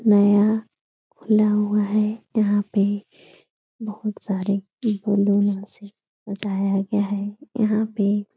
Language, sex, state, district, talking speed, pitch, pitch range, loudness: Hindi, female, Bihar, Supaul, 115 wpm, 205 Hz, 200-215 Hz, -22 LUFS